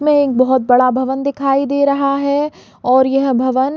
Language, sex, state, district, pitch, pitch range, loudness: Hindi, female, Chhattisgarh, Balrampur, 270 Hz, 260-280 Hz, -15 LUFS